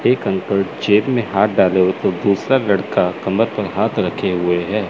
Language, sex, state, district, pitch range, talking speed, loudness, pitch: Hindi, male, Chandigarh, Chandigarh, 95-105 Hz, 195 wpm, -17 LUFS, 100 Hz